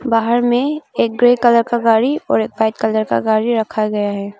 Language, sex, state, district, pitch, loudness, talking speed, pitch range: Hindi, female, Arunachal Pradesh, Longding, 225 Hz, -16 LUFS, 220 wpm, 220-240 Hz